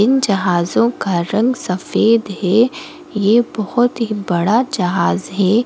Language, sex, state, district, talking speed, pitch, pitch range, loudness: Hindi, female, Goa, North and South Goa, 140 wpm, 215 Hz, 190-235 Hz, -16 LUFS